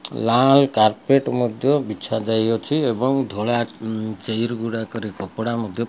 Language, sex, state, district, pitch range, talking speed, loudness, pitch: Odia, male, Odisha, Malkangiri, 110-125 Hz, 110 wpm, -21 LUFS, 115 Hz